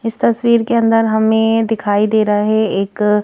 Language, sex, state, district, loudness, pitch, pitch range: Hindi, female, Madhya Pradesh, Bhopal, -14 LUFS, 220 Hz, 210-225 Hz